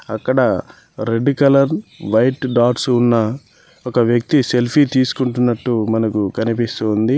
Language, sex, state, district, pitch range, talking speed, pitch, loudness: Telugu, male, Telangana, Mahabubabad, 115-130 Hz, 110 wpm, 120 Hz, -16 LUFS